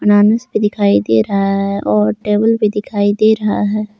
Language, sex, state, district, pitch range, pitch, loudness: Hindi, male, Jharkhand, Palamu, 195-215 Hz, 205 Hz, -14 LUFS